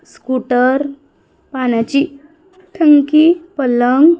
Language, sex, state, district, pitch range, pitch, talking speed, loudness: Marathi, female, Maharashtra, Gondia, 255-325 Hz, 285 Hz, 55 wpm, -14 LUFS